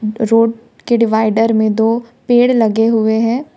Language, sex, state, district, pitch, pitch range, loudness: Hindi, female, Jharkhand, Ranchi, 225 Hz, 220-235 Hz, -13 LUFS